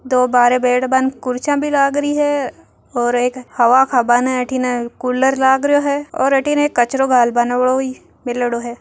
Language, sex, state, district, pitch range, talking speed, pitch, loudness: Marwari, female, Rajasthan, Churu, 245-270 Hz, 175 wpm, 255 Hz, -16 LUFS